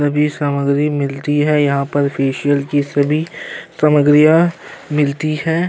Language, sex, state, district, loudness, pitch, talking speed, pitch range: Hindi, male, Uttar Pradesh, Jyotiba Phule Nagar, -15 LUFS, 145 Hz, 125 wpm, 140-150 Hz